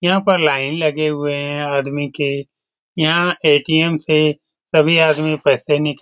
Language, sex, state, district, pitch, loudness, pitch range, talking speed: Hindi, male, Bihar, Lakhisarai, 155 Hz, -16 LUFS, 145-160 Hz, 160 wpm